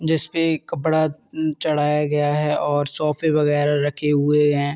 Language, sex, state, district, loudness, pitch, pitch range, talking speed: Hindi, male, Uttar Pradesh, Muzaffarnagar, -20 LUFS, 150 Hz, 145-155 Hz, 150 wpm